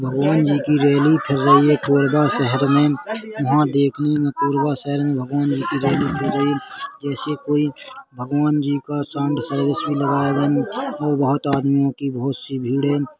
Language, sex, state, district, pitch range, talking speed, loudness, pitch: Hindi, male, Chhattisgarh, Korba, 140-150 Hz, 150 wpm, -19 LUFS, 140 Hz